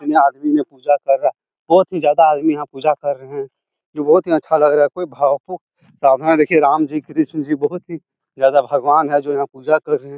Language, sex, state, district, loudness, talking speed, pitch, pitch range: Hindi, male, Bihar, Jahanabad, -16 LUFS, 235 wpm, 150 Hz, 140-160 Hz